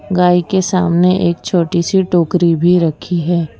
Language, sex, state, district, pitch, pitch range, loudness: Hindi, female, Gujarat, Valsad, 175 Hz, 170-185 Hz, -14 LUFS